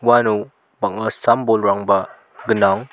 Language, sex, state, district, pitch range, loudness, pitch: Garo, male, Meghalaya, South Garo Hills, 100-115 Hz, -18 LUFS, 110 Hz